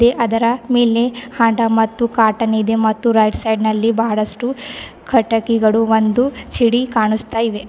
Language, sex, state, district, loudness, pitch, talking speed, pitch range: Kannada, female, Karnataka, Bidar, -16 LUFS, 230 Hz, 110 wpm, 220-235 Hz